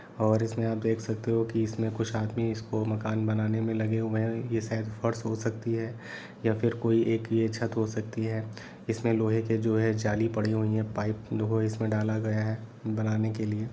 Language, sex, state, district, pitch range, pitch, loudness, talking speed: Hindi, male, Bihar, Saran, 110-115 Hz, 110 Hz, -29 LUFS, 210 wpm